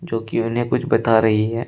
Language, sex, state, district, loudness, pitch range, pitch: Hindi, male, Uttar Pradesh, Shamli, -19 LUFS, 110-120 Hz, 115 Hz